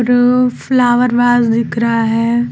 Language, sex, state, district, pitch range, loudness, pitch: Hindi, female, Uttar Pradesh, Lucknow, 230-245 Hz, -13 LUFS, 240 Hz